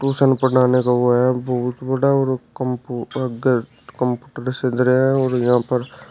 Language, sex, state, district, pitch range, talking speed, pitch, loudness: Hindi, male, Uttar Pradesh, Shamli, 125-130 Hz, 175 wpm, 125 Hz, -19 LUFS